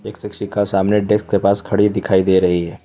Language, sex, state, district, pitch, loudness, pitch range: Hindi, male, Jharkhand, Ranchi, 100 Hz, -16 LUFS, 95-105 Hz